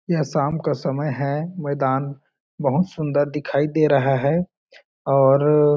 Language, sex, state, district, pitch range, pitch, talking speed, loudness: Hindi, male, Chhattisgarh, Balrampur, 140-155 Hz, 145 Hz, 145 wpm, -21 LUFS